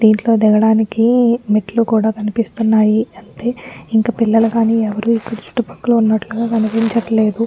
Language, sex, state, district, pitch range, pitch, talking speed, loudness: Telugu, female, Andhra Pradesh, Anantapur, 220-230 Hz, 225 Hz, 95 wpm, -15 LUFS